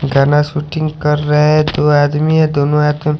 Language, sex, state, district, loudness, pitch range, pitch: Hindi, male, Haryana, Charkhi Dadri, -13 LUFS, 145-150 Hz, 150 Hz